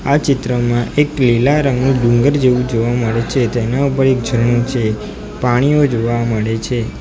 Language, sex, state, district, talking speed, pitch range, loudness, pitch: Gujarati, male, Gujarat, Valsad, 165 wpm, 120-135 Hz, -15 LUFS, 120 Hz